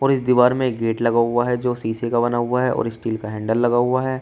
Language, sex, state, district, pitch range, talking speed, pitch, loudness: Hindi, male, Uttar Pradesh, Shamli, 115-125 Hz, 315 wpm, 120 Hz, -20 LUFS